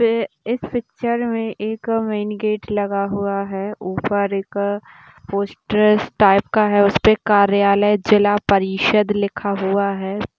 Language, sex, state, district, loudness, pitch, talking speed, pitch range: Hindi, female, Bihar, Gaya, -18 LUFS, 205 Hz, 135 wpm, 200-215 Hz